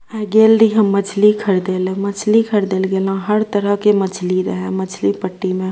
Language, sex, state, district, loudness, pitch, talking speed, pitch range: Maithili, female, Bihar, Purnia, -16 LUFS, 195 Hz, 190 wpm, 185-210 Hz